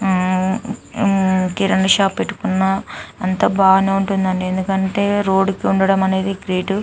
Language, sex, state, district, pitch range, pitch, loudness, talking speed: Telugu, female, Andhra Pradesh, Chittoor, 190-195 Hz, 190 Hz, -17 LUFS, 130 wpm